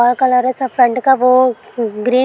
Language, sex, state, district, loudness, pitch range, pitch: Hindi, female, Bihar, Araria, -14 LUFS, 245-255 Hz, 250 Hz